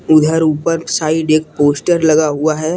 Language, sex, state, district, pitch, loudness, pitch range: Hindi, male, Jharkhand, Deoghar, 155 Hz, -14 LUFS, 155-160 Hz